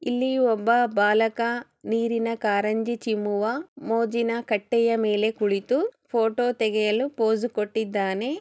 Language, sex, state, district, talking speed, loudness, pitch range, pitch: Kannada, female, Karnataka, Chamarajanagar, 100 wpm, -24 LUFS, 215-240 Hz, 230 Hz